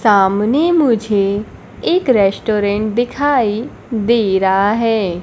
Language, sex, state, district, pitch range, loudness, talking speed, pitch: Hindi, male, Bihar, Kaimur, 200-240 Hz, -15 LUFS, 90 wpm, 215 Hz